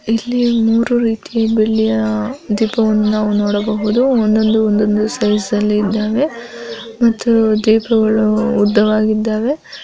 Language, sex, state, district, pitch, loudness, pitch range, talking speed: Kannada, female, Karnataka, Bijapur, 220 Hz, -15 LUFS, 210-230 Hz, 85 wpm